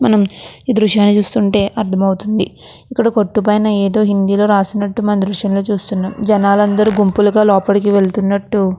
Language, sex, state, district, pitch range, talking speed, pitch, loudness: Telugu, female, Andhra Pradesh, Krishna, 200-215 Hz, 130 wpm, 205 Hz, -14 LUFS